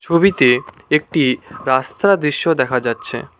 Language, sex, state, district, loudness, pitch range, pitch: Bengali, male, West Bengal, Cooch Behar, -16 LUFS, 130-165 Hz, 145 Hz